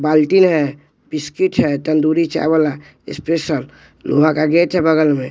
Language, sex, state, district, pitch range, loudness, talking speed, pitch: Hindi, male, Bihar, West Champaran, 150-165 Hz, -16 LUFS, 160 wpm, 155 Hz